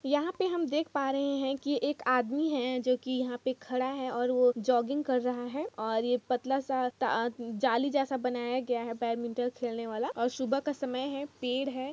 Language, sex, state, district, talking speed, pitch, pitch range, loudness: Hindi, female, Jharkhand, Jamtara, 215 wpm, 255 Hz, 245-275 Hz, -31 LUFS